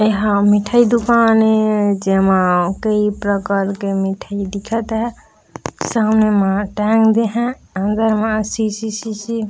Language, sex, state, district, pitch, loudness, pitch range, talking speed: Chhattisgarhi, female, Chhattisgarh, Raigarh, 215 Hz, -16 LUFS, 200-220 Hz, 125 wpm